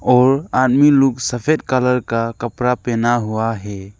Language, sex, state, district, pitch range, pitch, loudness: Hindi, male, Arunachal Pradesh, Lower Dibang Valley, 115-130 Hz, 125 Hz, -17 LUFS